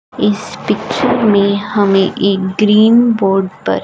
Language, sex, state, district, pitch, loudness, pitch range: Hindi, female, Punjab, Fazilka, 200 Hz, -13 LUFS, 195-215 Hz